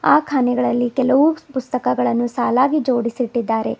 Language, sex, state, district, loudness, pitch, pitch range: Kannada, female, Karnataka, Bidar, -18 LUFS, 250 Hz, 235-265 Hz